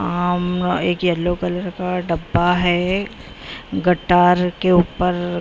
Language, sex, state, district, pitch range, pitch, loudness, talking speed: Marathi, female, Maharashtra, Mumbai Suburban, 175-180 Hz, 180 Hz, -18 LUFS, 135 wpm